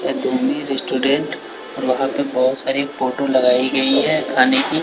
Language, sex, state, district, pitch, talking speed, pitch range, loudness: Hindi, male, Bihar, West Champaran, 135 Hz, 150 wpm, 130-140 Hz, -17 LUFS